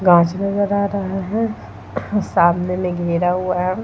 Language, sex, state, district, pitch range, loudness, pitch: Hindi, female, Uttar Pradesh, Varanasi, 180-200 Hz, -19 LUFS, 185 Hz